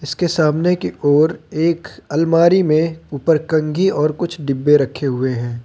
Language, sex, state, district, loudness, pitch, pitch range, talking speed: Hindi, male, Uttar Pradesh, Lucknow, -17 LUFS, 155 Hz, 145-165 Hz, 160 wpm